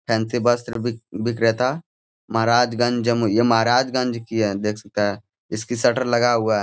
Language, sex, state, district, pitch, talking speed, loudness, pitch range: Hindi, male, Bihar, Jamui, 115 Hz, 165 wpm, -21 LUFS, 110-120 Hz